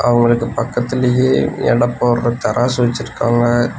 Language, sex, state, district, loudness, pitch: Tamil, male, Tamil Nadu, Nilgiris, -16 LUFS, 120 Hz